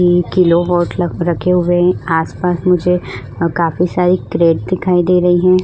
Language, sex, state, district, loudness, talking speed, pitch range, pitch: Hindi, female, Goa, North and South Goa, -14 LUFS, 150 wpm, 170-180 Hz, 175 Hz